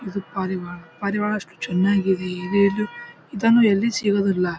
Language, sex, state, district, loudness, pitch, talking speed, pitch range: Kannada, male, Karnataka, Bijapur, -21 LUFS, 200 Hz, 115 wpm, 185-210 Hz